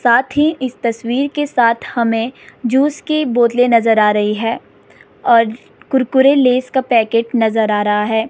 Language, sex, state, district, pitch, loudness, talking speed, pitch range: Hindi, female, Himachal Pradesh, Shimla, 240 Hz, -15 LUFS, 165 wpm, 225-265 Hz